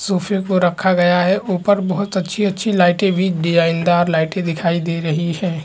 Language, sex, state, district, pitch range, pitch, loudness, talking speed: Hindi, male, Chhattisgarh, Balrampur, 170-190 Hz, 180 Hz, -17 LUFS, 190 wpm